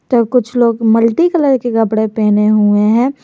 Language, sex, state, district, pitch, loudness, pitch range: Hindi, female, Jharkhand, Garhwa, 230 Hz, -12 LUFS, 215-250 Hz